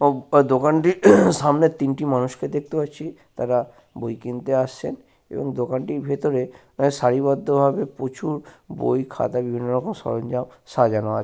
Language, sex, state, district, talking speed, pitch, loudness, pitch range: Bengali, male, West Bengal, Paschim Medinipur, 125 wpm, 130 Hz, -21 LUFS, 125-145 Hz